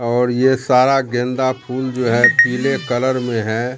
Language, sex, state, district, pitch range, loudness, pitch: Hindi, male, Bihar, Katihar, 120-130 Hz, -16 LUFS, 125 Hz